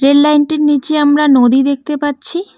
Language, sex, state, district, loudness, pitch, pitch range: Bengali, female, West Bengal, Cooch Behar, -12 LUFS, 290 Hz, 280-300 Hz